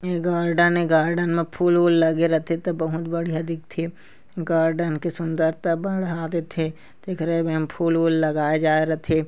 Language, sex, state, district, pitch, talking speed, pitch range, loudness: Chhattisgarhi, female, Chhattisgarh, Kabirdham, 165 Hz, 155 wpm, 160-170 Hz, -22 LUFS